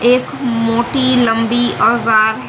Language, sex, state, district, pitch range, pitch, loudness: Hindi, female, Karnataka, Bangalore, 230-245 Hz, 235 Hz, -13 LUFS